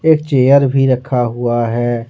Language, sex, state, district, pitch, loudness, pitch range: Hindi, male, Jharkhand, Ranchi, 125 Hz, -14 LUFS, 120-135 Hz